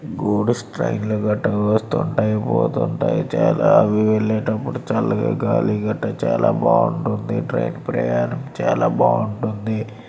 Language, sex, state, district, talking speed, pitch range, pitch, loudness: Telugu, male, Andhra Pradesh, Srikakulam, 90 wpm, 105-110 Hz, 110 Hz, -20 LUFS